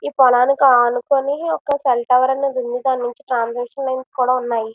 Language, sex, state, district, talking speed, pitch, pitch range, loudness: Telugu, female, Andhra Pradesh, Visakhapatnam, 150 wpm, 255 Hz, 245-270 Hz, -17 LUFS